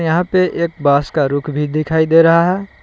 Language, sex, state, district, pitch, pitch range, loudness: Hindi, male, Jharkhand, Palamu, 160 Hz, 150-170 Hz, -14 LUFS